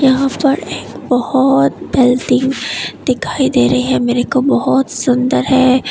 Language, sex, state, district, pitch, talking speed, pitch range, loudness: Hindi, female, Tripura, West Tripura, 260 Hz, 140 wpm, 245-270 Hz, -14 LUFS